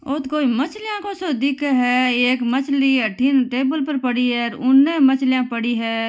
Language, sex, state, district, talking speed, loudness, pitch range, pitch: Marwari, female, Rajasthan, Nagaur, 185 wpm, -18 LUFS, 245-280 Hz, 265 Hz